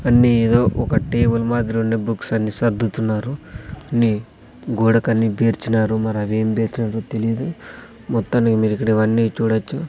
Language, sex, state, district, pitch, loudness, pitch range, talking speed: Telugu, male, Andhra Pradesh, Sri Satya Sai, 115 Hz, -19 LUFS, 110-120 Hz, 120 wpm